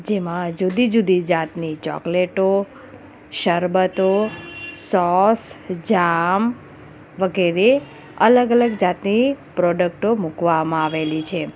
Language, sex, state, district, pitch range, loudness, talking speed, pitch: Gujarati, female, Gujarat, Valsad, 170-210 Hz, -19 LUFS, 75 wpm, 185 Hz